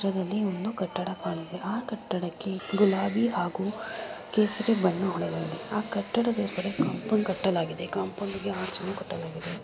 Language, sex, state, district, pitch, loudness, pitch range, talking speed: Kannada, female, Karnataka, Mysore, 200 Hz, -29 LUFS, 185-215 Hz, 125 wpm